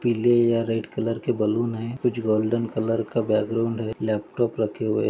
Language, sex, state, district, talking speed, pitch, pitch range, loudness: Hindi, male, Maharashtra, Dhule, 190 wpm, 115 Hz, 110-120 Hz, -24 LUFS